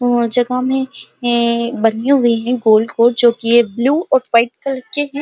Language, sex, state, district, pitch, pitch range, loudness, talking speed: Hindi, female, Uttar Pradesh, Muzaffarnagar, 240 Hz, 235-260 Hz, -15 LUFS, 90 wpm